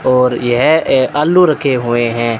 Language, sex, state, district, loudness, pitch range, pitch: Hindi, male, Rajasthan, Bikaner, -12 LUFS, 120-150 Hz, 125 Hz